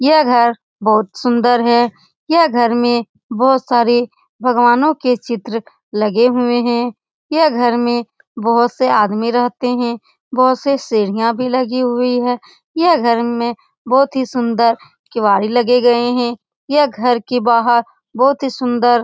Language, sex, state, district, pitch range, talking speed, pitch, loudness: Hindi, female, Bihar, Saran, 235-255 Hz, 155 wpm, 240 Hz, -15 LUFS